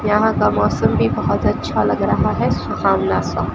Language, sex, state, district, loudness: Hindi, female, Rajasthan, Bikaner, -17 LUFS